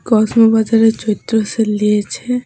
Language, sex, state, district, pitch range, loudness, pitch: Bengali, female, West Bengal, Alipurduar, 215-225 Hz, -14 LUFS, 220 Hz